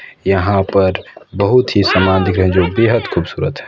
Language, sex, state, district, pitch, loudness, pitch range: Hindi, male, Chhattisgarh, Balrampur, 95 Hz, -14 LUFS, 95-100 Hz